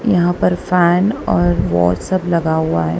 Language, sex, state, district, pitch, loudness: Hindi, female, Punjab, Kapurthala, 170 Hz, -15 LUFS